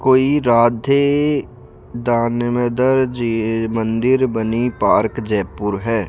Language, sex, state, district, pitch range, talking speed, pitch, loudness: Hindi, male, Rajasthan, Jaipur, 115-130 Hz, 90 wpm, 120 Hz, -17 LUFS